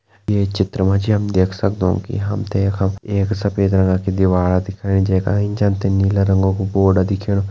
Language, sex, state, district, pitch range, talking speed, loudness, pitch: Hindi, male, Uttarakhand, Tehri Garhwal, 95-100 Hz, 190 wpm, -18 LUFS, 100 Hz